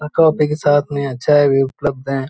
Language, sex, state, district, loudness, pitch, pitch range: Hindi, male, Uttar Pradesh, Hamirpur, -16 LUFS, 145 Hz, 135-150 Hz